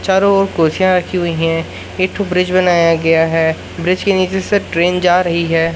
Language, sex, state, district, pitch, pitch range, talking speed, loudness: Hindi, male, Madhya Pradesh, Katni, 180 Hz, 165-185 Hz, 210 wpm, -14 LUFS